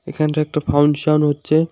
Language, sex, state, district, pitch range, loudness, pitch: Bengali, male, West Bengal, Alipurduar, 145-155 Hz, -17 LUFS, 150 Hz